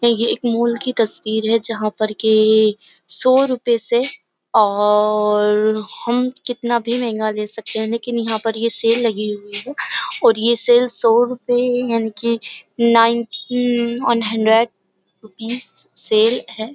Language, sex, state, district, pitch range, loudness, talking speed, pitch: Hindi, female, Uttar Pradesh, Jyotiba Phule Nagar, 215-240 Hz, -17 LUFS, 145 wpm, 230 Hz